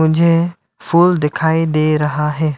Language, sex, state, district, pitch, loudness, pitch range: Hindi, male, Arunachal Pradesh, Lower Dibang Valley, 160 Hz, -15 LUFS, 155-170 Hz